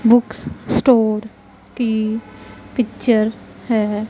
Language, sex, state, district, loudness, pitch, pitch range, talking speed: Hindi, female, Punjab, Pathankot, -18 LUFS, 220 Hz, 215-235 Hz, 75 wpm